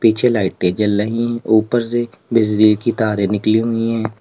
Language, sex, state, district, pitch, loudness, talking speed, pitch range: Hindi, male, Uttar Pradesh, Lalitpur, 110 Hz, -17 LUFS, 170 wpm, 105-115 Hz